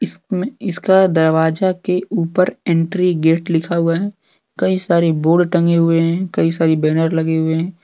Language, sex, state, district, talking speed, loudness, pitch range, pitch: Hindi, male, Jharkhand, Deoghar, 170 wpm, -16 LUFS, 165-185 Hz, 170 Hz